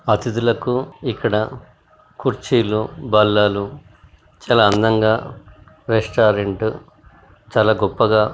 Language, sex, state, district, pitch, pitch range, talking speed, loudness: Telugu, male, Telangana, Nalgonda, 110 Hz, 100-120 Hz, 70 wpm, -18 LUFS